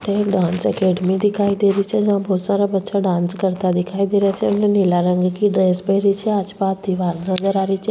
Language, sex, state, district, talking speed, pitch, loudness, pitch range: Rajasthani, female, Rajasthan, Churu, 235 wpm, 195 Hz, -18 LUFS, 185-200 Hz